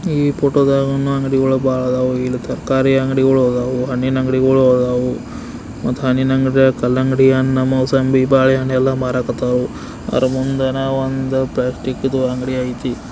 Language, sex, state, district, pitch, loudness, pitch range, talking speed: Kannada, male, Karnataka, Belgaum, 130 Hz, -16 LUFS, 125-135 Hz, 135 wpm